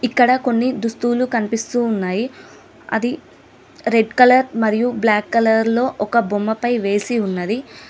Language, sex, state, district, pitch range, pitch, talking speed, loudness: Telugu, female, Telangana, Mahabubabad, 220-245 Hz, 230 Hz, 120 wpm, -18 LUFS